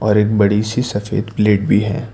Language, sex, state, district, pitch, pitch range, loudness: Hindi, male, Karnataka, Bangalore, 105 Hz, 105-110 Hz, -16 LUFS